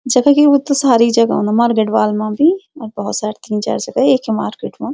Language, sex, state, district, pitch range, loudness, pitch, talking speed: Garhwali, female, Uttarakhand, Uttarkashi, 215-280 Hz, -14 LUFS, 235 Hz, 230 wpm